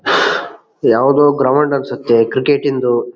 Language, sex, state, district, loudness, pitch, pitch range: Kannada, male, Karnataka, Bellary, -14 LUFS, 135 Hz, 120-145 Hz